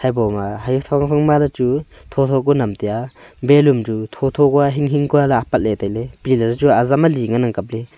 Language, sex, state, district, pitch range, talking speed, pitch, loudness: Wancho, male, Arunachal Pradesh, Longding, 115-145 Hz, 235 wpm, 130 Hz, -17 LUFS